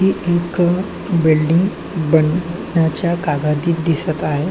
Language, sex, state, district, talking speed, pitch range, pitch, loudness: Marathi, male, Maharashtra, Chandrapur, 95 wpm, 155-175 Hz, 170 Hz, -17 LUFS